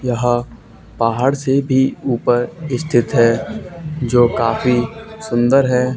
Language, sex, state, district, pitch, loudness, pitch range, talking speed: Hindi, male, Haryana, Charkhi Dadri, 125 Hz, -16 LUFS, 120-135 Hz, 110 wpm